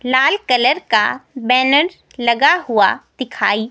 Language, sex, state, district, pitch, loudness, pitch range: Hindi, female, Himachal Pradesh, Shimla, 255 Hz, -15 LUFS, 235-265 Hz